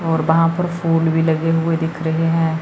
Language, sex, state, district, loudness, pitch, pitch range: Hindi, male, Chandigarh, Chandigarh, -17 LUFS, 165 Hz, 160-165 Hz